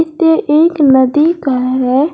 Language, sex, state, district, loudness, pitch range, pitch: Hindi, female, Jharkhand, Garhwa, -11 LUFS, 260-325 Hz, 295 Hz